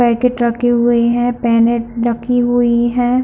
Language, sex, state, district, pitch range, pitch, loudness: Hindi, female, Chhattisgarh, Bilaspur, 235-245 Hz, 240 Hz, -14 LUFS